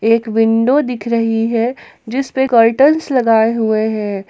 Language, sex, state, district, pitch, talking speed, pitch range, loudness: Hindi, female, Jharkhand, Garhwa, 230 Hz, 155 wpm, 225-255 Hz, -14 LUFS